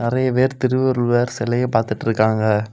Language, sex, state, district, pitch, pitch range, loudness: Tamil, male, Tamil Nadu, Kanyakumari, 120 Hz, 110-130 Hz, -19 LUFS